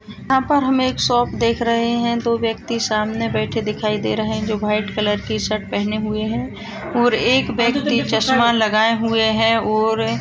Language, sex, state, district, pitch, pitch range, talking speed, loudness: Hindi, female, Chhattisgarh, Sukma, 225 Hz, 215-235 Hz, 195 wpm, -18 LUFS